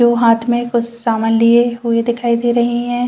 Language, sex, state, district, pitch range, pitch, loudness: Hindi, female, Chhattisgarh, Bastar, 230-240 Hz, 235 Hz, -15 LUFS